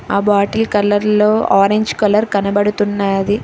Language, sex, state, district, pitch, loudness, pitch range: Telugu, female, Telangana, Hyderabad, 205 Hz, -14 LUFS, 200-210 Hz